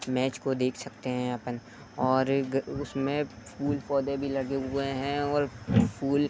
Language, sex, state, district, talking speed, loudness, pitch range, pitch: Hindi, male, Uttar Pradesh, Etah, 160 wpm, -30 LUFS, 130-140 Hz, 135 Hz